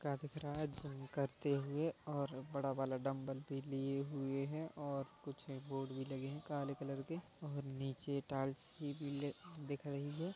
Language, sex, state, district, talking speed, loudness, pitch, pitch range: Hindi, male, Chhattisgarh, Kabirdham, 185 wpm, -44 LUFS, 140 Hz, 135-145 Hz